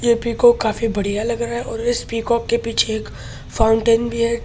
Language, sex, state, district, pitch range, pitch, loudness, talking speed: Hindi, male, Delhi, New Delhi, 220-235 Hz, 230 Hz, -19 LUFS, 230 wpm